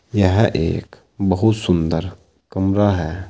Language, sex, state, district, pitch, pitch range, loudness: Hindi, male, Uttar Pradesh, Saharanpur, 95 Hz, 90-105 Hz, -18 LUFS